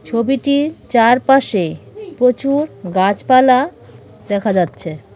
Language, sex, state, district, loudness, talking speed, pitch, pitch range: Bengali, female, West Bengal, Cooch Behar, -15 LUFS, 70 wpm, 250 Hz, 195-275 Hz